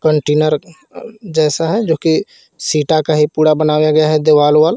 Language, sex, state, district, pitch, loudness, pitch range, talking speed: Hindi, male, Jharkhand, Garhwa, 155 Hz, -14 LUFS, 150-160 Hz, 175 wpm